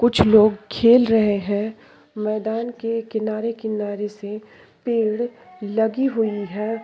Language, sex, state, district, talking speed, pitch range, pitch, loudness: Hindi, female, Chhattisgarh, Sukma, 115 wpm, 210-230 Hz, 220 Hz, -21 LUFS